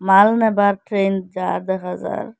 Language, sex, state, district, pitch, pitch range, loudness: Bengali, female, Assam, Hailakandi, 195 Hz, 190-205 Hz, -19 LUFS